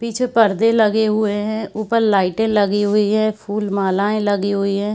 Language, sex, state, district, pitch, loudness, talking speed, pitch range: Hindi, female, Chhattisgarh, Bilaspur, 210 Hz, -17 LUFS, 180 wpm, 200-220 Hz